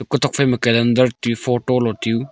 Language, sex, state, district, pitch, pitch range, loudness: Wancho, male, Arunachal Pradesh, Longding, 125 Hz, 115-130 Hz, -18 LUFS